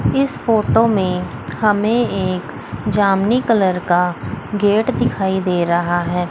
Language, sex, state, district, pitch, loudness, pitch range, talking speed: Hindi, female, Chandigarh, Chandigarh, 190 Hz, -17 LUFS, 175-210 Hz, 125 wpm